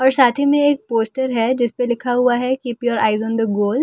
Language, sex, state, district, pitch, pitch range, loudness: Hindi, female, Delhi, New Delhi, 245 Hz, 225-260 Hz, -18 LUFS